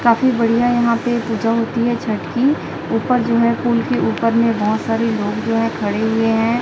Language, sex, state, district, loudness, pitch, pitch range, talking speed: Hindi, female, Chhattisgarh, Raipur, -17 LUFS, 230 Hz, 225-240 Hz, 215 wpm